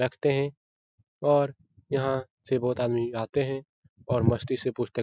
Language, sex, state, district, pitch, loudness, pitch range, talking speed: Hindi, male, Bihar, Jahanabad, 130 Hz, -28 LUFS, 120-140 Hz, 165 wpm